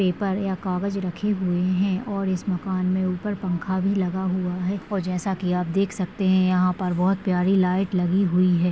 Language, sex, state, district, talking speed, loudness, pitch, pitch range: Hindi, female, Maharashtra, Solapur, 215 wpm, -23 LUFS, 185 Hz, 180-195 Hz